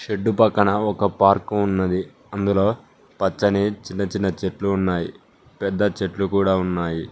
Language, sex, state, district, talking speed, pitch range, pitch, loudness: Telugu, male, Telangana, Mahabubabad, 125 wpm, 95-100 Hz, 100 Hz, -21 LUFS